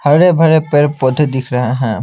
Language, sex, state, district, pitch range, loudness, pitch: Hindi, male, Bihar, Patna, 130-155 Hz, -12 LUFS, 145 Hz